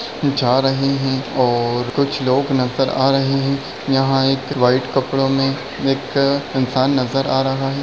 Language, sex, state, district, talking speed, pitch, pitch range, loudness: Hindi, male, Bihar, Darbhanga, 160 wpm, 135 Hz, 130-135 Hz, -18 LUFS